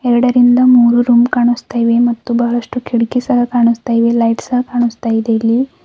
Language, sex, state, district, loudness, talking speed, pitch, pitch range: Kannada, female, Karnataka, Bidar, -13 LUFS, 165 wpm, 240 Hz, 235-250 Hz